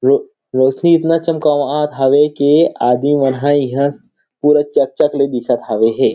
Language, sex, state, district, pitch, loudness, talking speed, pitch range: Chhattisgarhi, male, Chhattisgarh, Rajnandgaon, 145 Hz, -14 LUFS, 145 wpm, 135-155 Hz